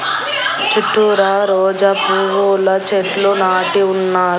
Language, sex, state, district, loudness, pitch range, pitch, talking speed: Telugu, female, Andhra Pradesh, Annamaya, -14 LUFS, 190-200 Hz, 195 Hz, 70 wpm